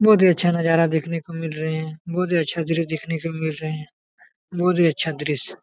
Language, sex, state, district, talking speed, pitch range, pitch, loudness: Hindi, male, Jharkhand, Jamtara, 235 wpm, 160-170 Hz, 165 Hz, -22 LUFS